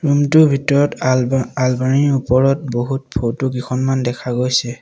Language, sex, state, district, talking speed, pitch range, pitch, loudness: Assamese, male, Assam, Sonitpur, 135 wpm, 125-140 Hz, 130 Hz, -16 LUFS